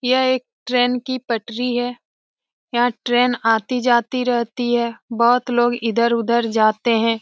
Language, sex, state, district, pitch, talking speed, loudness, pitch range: Hindi, female, Bihar, Jamui, 240 Hz, 160 wpm, -19 LUFS, 235-250 Hz